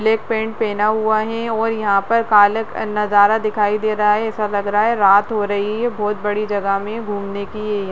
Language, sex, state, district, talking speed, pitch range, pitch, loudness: Hindi, female, Uttarakhand, Tehri Garhwal, 220 wpm, 205-220 Hz, 210 Hz, -18 LUFS